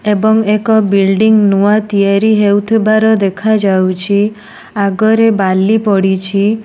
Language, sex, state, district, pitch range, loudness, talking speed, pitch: Odia, female, Odisha, Nuapada, 195-220 Hz, -11 LUFS, 90 wpm, 210 Hz